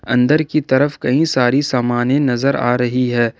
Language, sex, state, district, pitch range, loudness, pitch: Hindi, male, Jharkhand, Ranchi, 120-145 Hz, -16 LUFS, 125 Hz